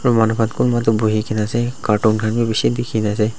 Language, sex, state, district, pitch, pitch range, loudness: Nagamese, male, Nagaland, Dimapur, 110 Hz, 110-120 Hz, -18 LUFS